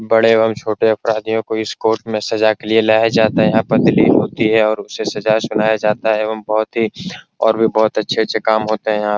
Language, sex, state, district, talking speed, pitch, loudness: Hindi, male, Bihar, Supaul, 220 wpm, 110 Hz, -15 LUFS